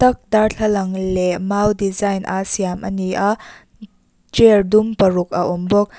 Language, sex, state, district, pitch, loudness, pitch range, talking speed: Mizo, female, Mizoram, Aizawl, 200 Hz, -17 LUFS, 190-210 Hz, 140 wpm